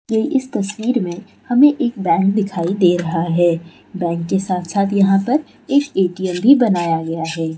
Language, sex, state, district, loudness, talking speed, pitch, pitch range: Hindi, female, Bihar, Bhagalpur, -17 LUFS, 175 wpm, 190 Hz, 170-230 Hz